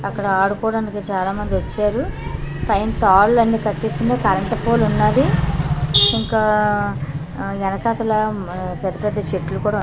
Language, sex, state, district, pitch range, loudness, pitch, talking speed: Telugu, female, Andhra Pradesh, Manyam, 175-210 Hz, -19 LUFS, 200 Hz, 90 wpm